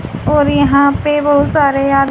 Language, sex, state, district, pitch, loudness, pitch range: Hindi, female, Haryana, Jhajjar, 285 Hz, -12 LUFS, 275-290 Hz